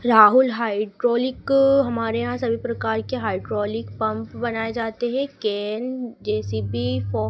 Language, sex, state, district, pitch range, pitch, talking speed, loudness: Hindi, female, Madhya Pradesh, Dhar, 205-245 Hz, 225 Hz, 125 wpm, -22 LUFS